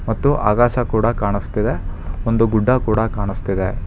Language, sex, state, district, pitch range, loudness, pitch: Kannada, male, Karnataka, Bangalore, 95-115 Hz, -18 LUFS, 110 Hz